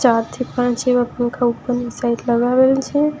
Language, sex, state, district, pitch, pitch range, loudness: Gujarati, female, Gujarat, Valsad, 245 Hz, 240-255 Hz, -18 LUFS